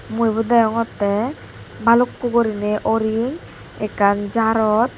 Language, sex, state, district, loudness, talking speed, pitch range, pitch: Chakma, female, Tripura, Dhalai, -19 LUFS, 95 wpm, 215-235 Hz, 225 Hz